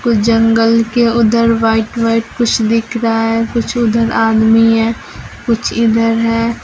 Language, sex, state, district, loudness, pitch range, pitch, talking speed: Hindi, female, Jharkhand, Deoghar, -13 LUFS, 225-230 Hz, 230 Hz, 145 wpm